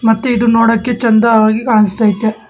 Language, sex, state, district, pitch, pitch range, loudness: Kannada, male, Karnataka, Bangalore, 225 Hz, 220-235 Hz, -11 LUFS